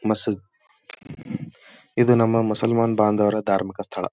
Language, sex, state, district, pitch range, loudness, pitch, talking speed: Kannada, male, Karnataka, Dharwad, 100-115 Hz, -21 LUFS, 105 Hz, 100 wpm